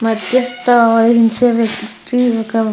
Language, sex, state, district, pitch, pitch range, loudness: Telugu, female, Andhra Pradesh, Krishna, 230 Hz, 225-245 Hz, -13 LUFS